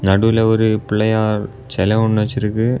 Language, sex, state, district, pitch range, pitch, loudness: Tamil, male, Tamil Nadu, Kanyakumari, 105-110 Hz, 110 Hz, -17 LUFS